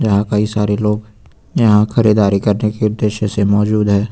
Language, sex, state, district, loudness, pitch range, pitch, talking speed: Hindi, male, Uttar Pradesh, Lucknow, -15 LUFS, 105-110 Hz, 105 Hz, 175 wpm